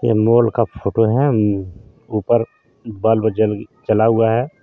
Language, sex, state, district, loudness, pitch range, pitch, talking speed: Hindi, male, Jharkhand, Deoghar, -17 LUFS, 110-115 Hz, 110 Hz, 130 wpm